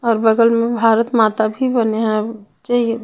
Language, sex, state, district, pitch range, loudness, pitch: Hindi, female, Bihar, Patna, 220-230 Hz, -16 LUFS, 225 Hz